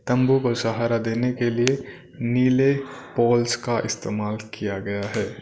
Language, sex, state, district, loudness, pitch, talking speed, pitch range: Hindi, male, Punjab, Kapurthala, -23 LUFS, 120 Hz, 145 wpm, 110-125 Hz